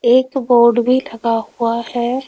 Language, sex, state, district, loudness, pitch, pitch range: Hindi, female, Rajasthan, Jaipur, -15 LUFS, 240 Hz, 235-255 Hz